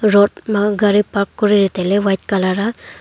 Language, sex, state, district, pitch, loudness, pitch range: Wancho, female, Arunachal Pradesh, Longding, 205 Hz, -16 LUFS, 195-210 Hz